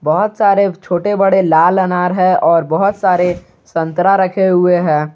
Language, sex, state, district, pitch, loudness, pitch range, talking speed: Hindi, male, Jharkhand, Garhwa, 180 Hz, -13 LUFS, 175-195 Hz, 165 wpm